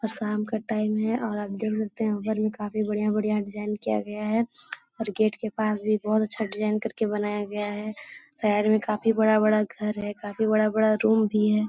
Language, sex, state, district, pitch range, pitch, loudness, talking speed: Hindi, female, Bihar, Jahanabad, 210-220 Hz, 215 Hz, -26 LUFS, 210 wpm